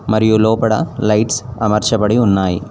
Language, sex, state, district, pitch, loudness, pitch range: Telugu, male, Telangana, Mahabubabad, 110 Hz, -15 LUFS, 105-115 Hz